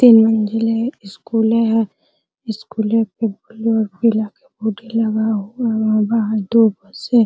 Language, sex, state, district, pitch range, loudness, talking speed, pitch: Hindi, female, Bihar, Araria, 215-230 Hz, -18 LUFS, 105 wpm, 225 Hz